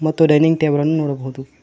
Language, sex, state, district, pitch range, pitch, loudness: Kannada, male, Karnataka, Koppal, 140-160 Hz, 150 Hz, -16 LUFS